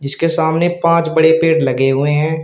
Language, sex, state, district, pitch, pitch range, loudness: Hindi, male, Uttar Pradesh, Shamli, 160 Hz, 145-165 Hz, -14 LUFS